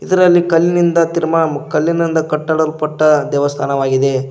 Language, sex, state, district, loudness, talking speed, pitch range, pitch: Kannada, male, Karnataka, Koppal, -14 LUFS, 70 wpm, 150-170 Hz, 160 Hz